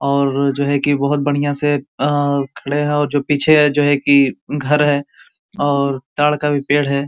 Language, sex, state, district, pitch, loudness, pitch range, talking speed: Hindi, male, Uttar Pradesh, Ghazipur, 145 Hz, -16 LUFS, 140-145 Hz, 185 wpm